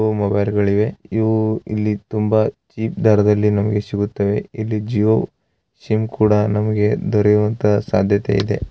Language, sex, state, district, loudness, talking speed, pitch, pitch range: Kannada, male, Karnataka, Raichur, -18 LUFS, 115 wpm, 105 Hz, 105-110 Hz